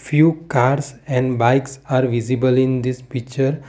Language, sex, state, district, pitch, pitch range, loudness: English, male, Gujarat, Valsad, 130 Hz, 125-135 Hz, -19 LUFS